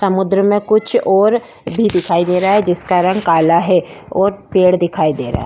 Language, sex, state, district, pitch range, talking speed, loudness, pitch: Hindi, female, Goa, North and South Goa, 175-200 Hz, 210 wpm, -14 LUFS, 185 Hz